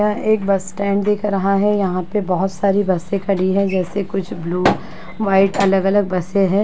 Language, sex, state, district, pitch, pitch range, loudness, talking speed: Hindi, female, Uttar Pradesh, Muzaffarnagar, 195 Hz, 185-200 Hz, -18 LUFS, 190 wpm